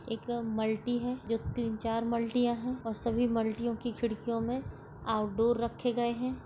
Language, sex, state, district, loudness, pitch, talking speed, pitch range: Hindi, female, Maharashtra, Solapur, -33 LUFS, 235 Hz, 165 wpm, 225-240 Hz